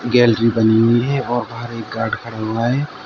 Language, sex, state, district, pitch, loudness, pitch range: Hindi, male, Uttar Pradesh, Shamli, 115 Hz, -18 LUFS, 115-120 Hz